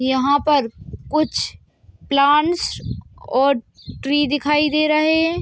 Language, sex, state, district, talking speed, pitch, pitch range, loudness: Hindi, female, Jharkhand, Sahebganj, 110 wpm, 290 Hz, 280-305 Hz, -18 LUFS